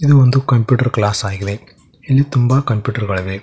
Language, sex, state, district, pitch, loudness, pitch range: Kannada, male, Karnataka, Koppal, 125 Hz, -15 LUFS, 105-135 Hz